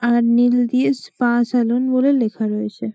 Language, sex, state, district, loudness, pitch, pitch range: Bengali, female, West Bengal, Malda, -18 LUFS, 240 Hz, 230-250 Hz